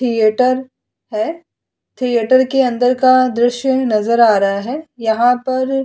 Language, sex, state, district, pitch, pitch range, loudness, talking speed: Hindi, female, Uttar Pradesh, Hamirpur, 250 Hz, 235-260 Hz, -15 LUFS, 145 wpm